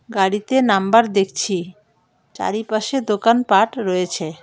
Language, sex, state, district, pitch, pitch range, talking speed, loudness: Bengali, female, West Bengal, Alipurduar, 205 Hz, 190-230 Hz, 80 wpm, -18 LUFS